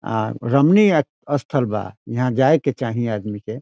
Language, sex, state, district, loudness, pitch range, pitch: Bhojpuri, male, Bihar, Saran, -19 LUFS, 110-140 Hz, 125 Hz